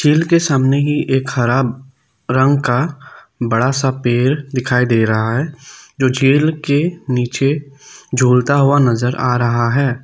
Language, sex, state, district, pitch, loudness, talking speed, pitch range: Hindi, male, Assam, Kamrup Metropolitan, 130 Hz, -15 LUFS, 145 wpm, 125-145 Hz